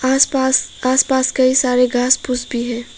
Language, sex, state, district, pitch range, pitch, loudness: Hindi, female, Arunachal Pradesh, Papum Pare, 250-260 Hz, 255 Hz, -15 LUFS